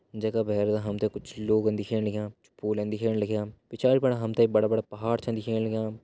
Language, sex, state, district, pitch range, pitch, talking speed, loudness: Hindi, male, Uttarakhand, Uttarkashi, 105-115 Hz, 110 Hz, 210 wpm, -28 LUFS